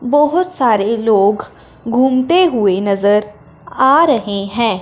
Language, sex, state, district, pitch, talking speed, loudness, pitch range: Hindi, female, Punjab, Fazilka, 225 Hz, 110 wpm, -14 LUFS, 205-265 Hz